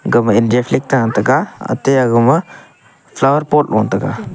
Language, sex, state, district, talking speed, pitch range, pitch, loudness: Wancho, male, Arunachal Pradesh, Longding, 165 wpm, 115-135 Hz, 130 Hz, -14 LUFS